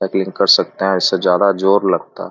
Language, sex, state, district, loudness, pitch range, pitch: Hindi, male, Bihar, Begusarai, -15 LUFS, 95-100 Hz, 95 Hz